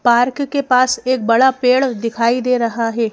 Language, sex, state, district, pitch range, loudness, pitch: Hindi, female, Madhya Pradesh, Bhopal, 230-255 Hz, -15 LUFS, 250 Hz